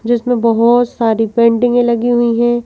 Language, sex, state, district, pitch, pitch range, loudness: Hindi, female, Madhya Pradesh, Bhopal, 240 Hz, 230-240 Hz, -13 LUFS